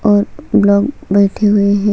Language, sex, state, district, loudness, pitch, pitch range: Hindi, female, Chhattisgarh, Sukma, -13 LUFS, 205 Hz, 200-220 Hz